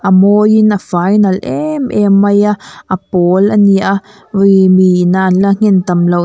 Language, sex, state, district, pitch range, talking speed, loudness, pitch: Mizo, female, Mizoram, Aizawl, 185-205 Hz, 220 wpm, -10 LUFS, 195 Hz